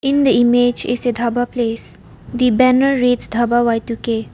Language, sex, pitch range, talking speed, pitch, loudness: English, female, 235-250 Hz, 195 wpm, 245 Hz, -16 LUFS